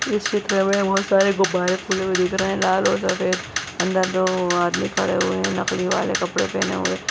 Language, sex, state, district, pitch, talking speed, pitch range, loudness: Hindi, female, Chhattisgarh, Bastar, 185 Hz, 220 wpm, 180-195 Hz, -21 LUFS